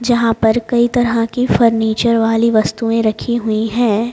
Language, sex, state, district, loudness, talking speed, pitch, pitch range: Hindi, female, Haryana, Jhajjar, -15 LUFS, 160 wpm, 230 Hz, 220-235 Hz